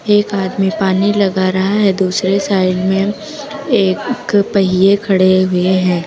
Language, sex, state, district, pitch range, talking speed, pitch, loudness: Hindi, female, Uttar Pradesh, Lucknow, 185-205 Hz, 140 wpm, 195 Hz, -14 LUFS